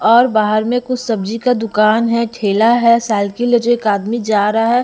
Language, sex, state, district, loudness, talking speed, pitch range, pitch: Hindi, female, Bihar, Patna, -14 LUFS, 225 wpm, 215-240 Hz, 225 Hz